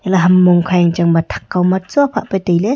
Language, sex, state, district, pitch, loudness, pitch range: Wancho, female, Arunachal Pradesh, Longding, 185 Hz, -14 LUFS, 175-195 Hz